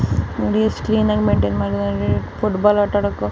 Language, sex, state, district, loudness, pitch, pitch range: Kannada, female, Karnataka, Chamarajanagar, -19 LUFS, 105 Hz, 100-110 Hz